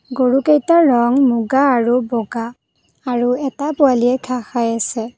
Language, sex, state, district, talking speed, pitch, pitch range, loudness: Assamese, female, Assam, Kamrup Metropolitan, 125 wpm, 250 Hz, 235-270 Hz, -16 LUFS